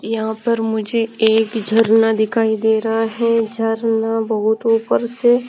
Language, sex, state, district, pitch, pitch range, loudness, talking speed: Hindi, female, Himachal Pradesh, Shimla, 225 Hz, 220-230 Hz, -17 LUFS, 140 wpm